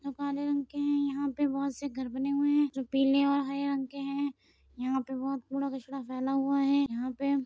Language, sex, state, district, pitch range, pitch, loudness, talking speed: Hindi, female, Uttar Pradesh, Muzaffarnagar, 265-280 Hz, 275 Hz, -31 LUFS, 250 wpm